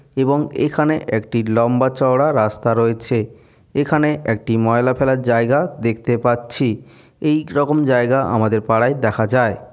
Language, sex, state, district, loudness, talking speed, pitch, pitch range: Bengali, male, West Bengal, Jalpaiguri, -17 LUFS, 130 wpm, 120 Hz, 115-135 Hz